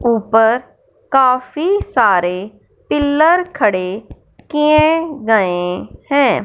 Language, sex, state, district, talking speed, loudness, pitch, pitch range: Hindi, male, Punjab, Fazilka, 75 wpm, -15 LUFS, 255 Hz, 215-310 Hz